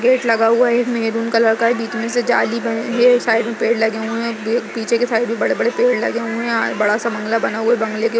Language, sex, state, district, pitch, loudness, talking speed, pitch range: Hindi, female, Uttar Pradesh, Jyotiba Phule Nagar, 230 Hz, -17 LUFS, 300 wpm, 225-240 Hz